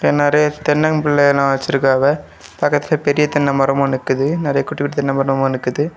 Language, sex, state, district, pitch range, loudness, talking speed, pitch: Tamil, male, Tamil Nadu, Kanyakumari, 135-145 Hz, -16 LUFS, 140 wpm, 145 Hz